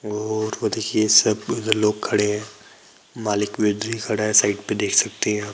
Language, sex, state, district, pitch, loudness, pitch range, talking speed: Hindi, male, Bihar, Begusarai, 105 Hz, -20 LUFS, 105-110 Hz, 185 wpm